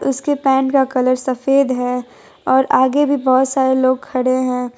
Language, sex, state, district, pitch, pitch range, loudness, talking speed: Hindi, female, Gujarat, Valsad, 260 Hz, 255-270 Hz, -16 LUFS, 175 wpm